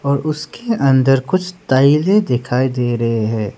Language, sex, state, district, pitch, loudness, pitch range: Hindi, male, Arunachal Pradesh, Lower Dibang Valley, 135 Hz, -16 LUFS, 125-155 Hz